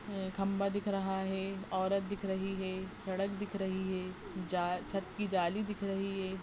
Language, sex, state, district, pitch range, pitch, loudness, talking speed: Hindi, female, Goa, North and South Goa, 190-200 Hz, 195 Hz, -36 LUFS, 185 wpm